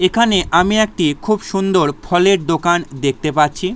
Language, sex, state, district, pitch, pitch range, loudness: Bengali, male, West Bengal, Jalpaiguri, 175 Hz, 155-195 Hz, -15 LUFS